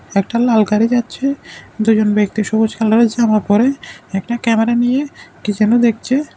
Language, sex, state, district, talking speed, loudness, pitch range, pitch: Bengali, male, Tripura, West Tripura, 150 wpm, -15 LUFS, 215-240 Hz, 225 Hz